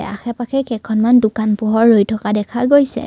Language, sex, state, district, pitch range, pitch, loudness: Assamese, female, Assam, Kamrup Metropolitan, 215-245 Hz, 225 Hz, -15 LUFS